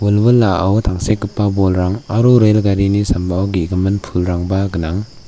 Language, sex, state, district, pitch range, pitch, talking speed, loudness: Garo, male, Meghalaya, South Garo Hills, 90-105 Hz, 100 Hz, 115 wpm, -15 LUFS